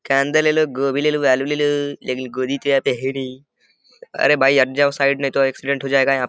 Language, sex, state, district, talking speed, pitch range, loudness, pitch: Hindi, male, Uttar Pradesh, Deoria, 265 wpm, 135-145 Hz, -18 LUFS, 140 Hz